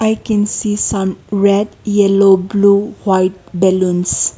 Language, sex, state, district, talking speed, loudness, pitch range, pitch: English, female, Nagaland, Kohima, 125 wpm, -14 LUFS, 190-205 Hz, 200 Hz